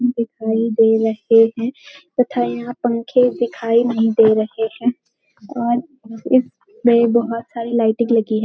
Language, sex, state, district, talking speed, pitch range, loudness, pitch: Hindi, female, Uttarakhand, Uttarkashi, 135 wpm, 225-245 Hz, -17 LUFS, 235 Hz